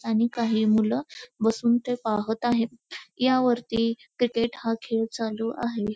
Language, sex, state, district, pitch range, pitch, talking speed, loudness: Marathi, female, Maharashtra, Pune, 225-240 Hz, 230 Hz, 130 wpm, -26 LUFS